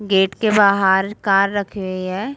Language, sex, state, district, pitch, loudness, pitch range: Hindi, female, Chhattisgarh, Raigarh, 195 Hz, -17 LUFS, 190-205 Hz